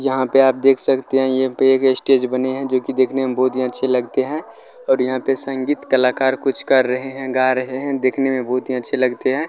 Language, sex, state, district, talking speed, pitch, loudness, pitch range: Hindi, male, Bihar, Jamui, 245 wpm, 130 Hz, -17 LUFS, 130-135 Hz